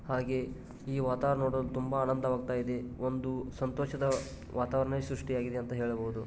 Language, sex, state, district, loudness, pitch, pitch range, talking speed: Kannada, male, Karnataka, Dharwad, -34 LUFS, 130 Hz, 125-135 Hz, 115 wpm